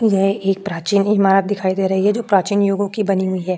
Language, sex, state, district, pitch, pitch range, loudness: Hindi, female, Uttar Pradesh, Jalaun, 195 Hz, 190-205 Hz, -17 LUFS